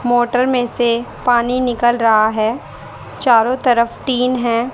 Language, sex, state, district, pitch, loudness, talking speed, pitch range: Hindi, female, Haryana, Rohtak, 240 Hz, -15 LUFS, 140 wpm, 235-250 Hz